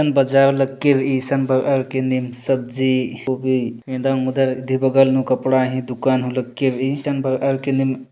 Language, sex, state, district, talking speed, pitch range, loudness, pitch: Sadri, male, Chhattisgarh, Jashpur, 185 wpm, 130-135 Hz, -19 LUFS, 130 Hz